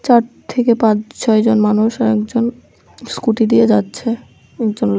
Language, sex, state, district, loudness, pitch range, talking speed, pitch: Bengali, female, Tripura, West Tripura, -15 LUFS, 215-235 Hz, 145 wpm, 225 Hz